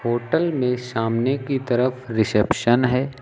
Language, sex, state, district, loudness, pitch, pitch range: Hindi, male, Uttar Pradesh, Lucknow, -21 LUFS, 125 Hz, 120-130 Hz